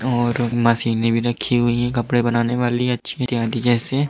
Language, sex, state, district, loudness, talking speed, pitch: Hindi, male, Bihar, East Champaran, -20 LUFS, 175 wpm, 120 Hz